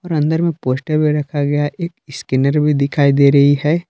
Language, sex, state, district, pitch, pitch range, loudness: Hindi, male, Jharkhand, Palamu, 145 Hz, 140-155 Hz, -15 LUFS